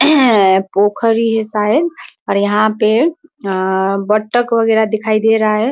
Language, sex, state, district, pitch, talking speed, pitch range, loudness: Hindi, female, Bihar, Muzaffarpur, 215 Hz, 145 wpm, 205-230 Hz, -14 LUFS